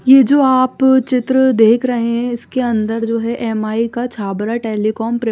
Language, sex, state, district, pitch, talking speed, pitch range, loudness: Hindi, female, Chandigarh, Chandigarh, 235 Hz, 180 wpm, 225-255 Hz, -15 LUFS